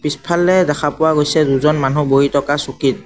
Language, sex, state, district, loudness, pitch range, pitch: Assamese, male, Assam, Sonitpur, -15 LUFS, 140-160 Hz, 150 Hz